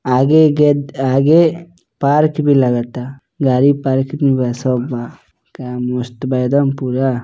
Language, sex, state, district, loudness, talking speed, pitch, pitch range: Hindi, male, Bihar, East Champaran, -15 LUFS, 130 wpm, 135 Hz, 125-145 Hz